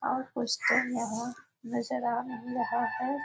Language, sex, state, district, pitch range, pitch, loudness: Maithili, female, Bihar, Muzaffarpur, 230-255 Hz, 240 Hz, -31 LUFS